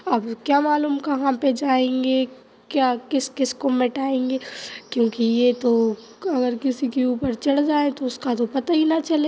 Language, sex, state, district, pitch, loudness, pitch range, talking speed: Hindi, female, Bihar, Begusarai, 260 Hz, -22 LUFS, 245-280 Hz, 170 wpm